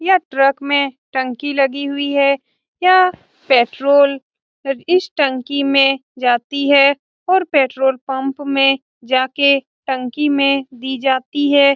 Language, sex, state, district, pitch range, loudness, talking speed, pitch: Hindi, female, Bihar, Saran, 265-285 Hz, -16 LUFS, 140 wpm, 275 Hz